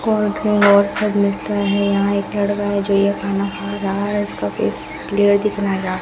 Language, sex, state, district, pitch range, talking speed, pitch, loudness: Hindi, female, Rajasthan, Bikaner, 200-205 Hz, 200 wpm, 200 Hz, -18 LUFS